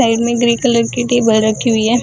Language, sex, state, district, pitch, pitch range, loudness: Hindi, female, Bihar, Samastipur, 235 Hz, 225-240 Hz, -14 LUFS